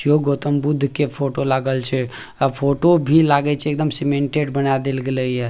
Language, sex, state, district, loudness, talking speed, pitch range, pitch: Maithili, male, Bihar, Purnia, -19 LUFS, 195 wpm, 135-145 Hz, 140 Hz